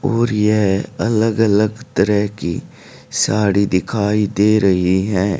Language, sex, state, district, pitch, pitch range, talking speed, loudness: Hindi, male, Haryana, Rohtak, 105 Hz, 95-110 Hz, 120 wpm, -16 LUFS